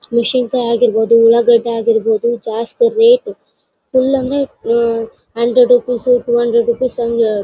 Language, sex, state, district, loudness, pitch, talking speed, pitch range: Kannada, female, Karnataka, Bellary, -13 LUFS, 235 Hz, 115 wpm, 230-250 Hz